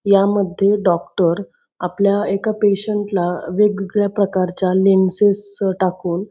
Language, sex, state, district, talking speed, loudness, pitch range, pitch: Marathi, female, Maharashtra, Pune, 115 wpm, -17 LUFS, 185-205 Hz, 195 Hz